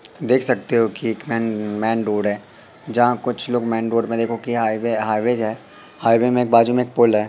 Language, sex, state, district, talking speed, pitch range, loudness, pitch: Hindi, male, Madhya Pradesh, Katni, 215 wpm, 110-120 Hz, -19 LUFS, 115 Hz